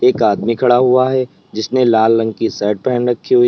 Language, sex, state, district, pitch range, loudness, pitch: Hindi, male, Uttar Pradesh, Lalitpur, 110-130 Hz, -15 LUFS, 120 Hz